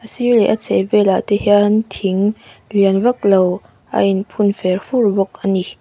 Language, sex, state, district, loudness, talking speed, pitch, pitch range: Mizo, female, Mizoram, Aizawl, -16 LUFS, 185 wpm, 205 Hz, 195-215 Hz